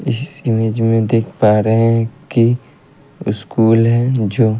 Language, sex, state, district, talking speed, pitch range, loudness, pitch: Hindi, male, Haryana, Rohtak, 145 wpm, 110-130 Hz, -15 LUFS, 115 Hz